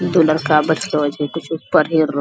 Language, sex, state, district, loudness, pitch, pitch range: Angika, female, Bihar, Bhagalpur, -17 LUFS, 155 Hz, 150-160 Hz